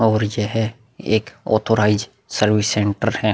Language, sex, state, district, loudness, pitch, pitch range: Hindi, male, Bihar, Vaishali, -20 LUFS, 110 Hz, 105-115 Hz